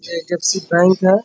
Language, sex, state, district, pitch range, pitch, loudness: Hindi, male, Bihar, Bhagalpur, 170-190 Hz, 185 Hz, -16 LUFS